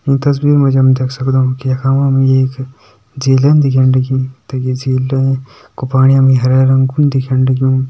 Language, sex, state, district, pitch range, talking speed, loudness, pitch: Hindi, male, Uttarakhand, Tehri Garhwal, 130-135 Hz, 190 wpm, -12 LUFS, 130 Hz